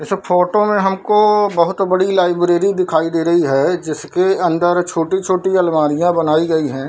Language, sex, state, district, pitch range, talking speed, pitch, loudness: Hindi, male, Bihar, Darbhanga, 165-190 Hz, 155 wpm, 180 Hz, -15 LUFS